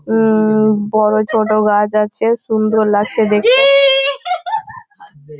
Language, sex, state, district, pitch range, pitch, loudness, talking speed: Bengali, female, West Bengal, Malda, 215-270 Hz, 220 Hz, -13 LUFS, 100 wpm